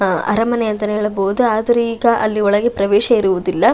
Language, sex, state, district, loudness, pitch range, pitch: Kannada, female, Karnataka, Shimoga, -16 LUFS, 200-230 Hz, 215 Hz